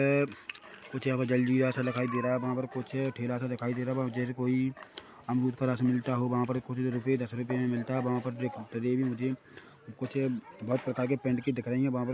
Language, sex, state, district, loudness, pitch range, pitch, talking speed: Hindi, male, Chhattisgarh, Bilaspur, -31 LUFS, 125-130 Hz, 125 Hz, 245 wpm